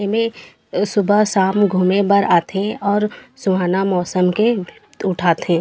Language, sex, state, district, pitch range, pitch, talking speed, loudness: Chhattisgarhi, female, Chhattisgarh, Raigarh, 185-205 Hz, 200 Hz, 140 wpm, -17 LUFS